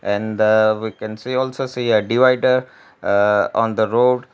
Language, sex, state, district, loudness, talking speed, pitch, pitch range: English, male, Gujarat, Valsad, -18 LUFS, 180 wpm, 115 Hz, 110-125 Hz